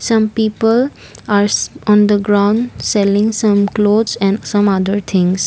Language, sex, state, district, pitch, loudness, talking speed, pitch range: English, female, Assam, Kamrup Metropolitan, 205 Hz, -14 LUFS, 155 wpm, 200-220 Hz